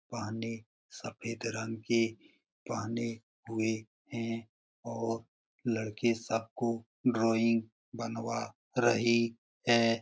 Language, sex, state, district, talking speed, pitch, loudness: Hindi, male, Bihar, Lakhisarai, 60 wpm, 115 Hz, -33 LUFS